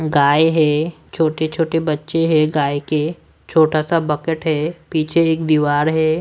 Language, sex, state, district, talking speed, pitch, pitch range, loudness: Hindi, male, Odisha, Sambalpur, 155 wpm, 155 Hz, 150-160 Hz, -17 LUFS